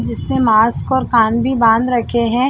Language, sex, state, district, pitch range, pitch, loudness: Hindi, female, Uttar Pradesh, Jalaun, 225-250 Hz, 235 Hz, -14 LUFS